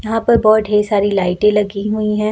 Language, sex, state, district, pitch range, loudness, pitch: Hindi, female, Uttar Pradesh, Lucknow, 205-215 Hz, -15 LUFS, 210 Hz